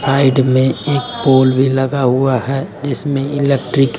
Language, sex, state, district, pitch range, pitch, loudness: Hindi, male, Bihar, West Champaran, 130-140 Hz, 135 Hz, -15 LUFS